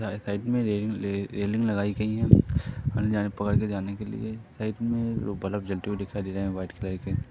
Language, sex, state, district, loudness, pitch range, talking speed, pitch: Hindi, male, Madhya Pradesh, Katni, -28 LUFS, 100-110 Hz, 220 wpm, 105 Hz